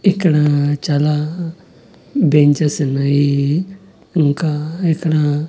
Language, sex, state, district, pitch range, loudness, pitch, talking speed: Telugu, male, Andhra Pradesh, Annamaya, 145-170 Hz, -16 LUFS, 150 Hz, 65 wpm